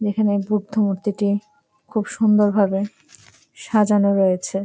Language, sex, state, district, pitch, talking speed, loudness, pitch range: Bengali, female, West Bengal, Jalpaiguri, 205 Hz, 105 wpm, -20 LUFS, 200-215 Hz